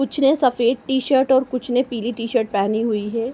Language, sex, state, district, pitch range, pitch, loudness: Hindi, female, Uttar Pradesh, Ghazipur, 230-265 Hz, 245 Hz, -20 LUFS